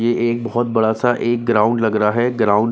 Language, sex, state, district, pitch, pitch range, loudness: Hindi, male, Bihar, Patna, 115 Hz, 110-120 Hz, -17 LUFS